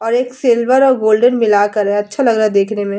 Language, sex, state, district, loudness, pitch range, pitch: Hindi, female, Uttar Pradesh, Etah, -13 LUFS, 205-245 Hz, 220 Hz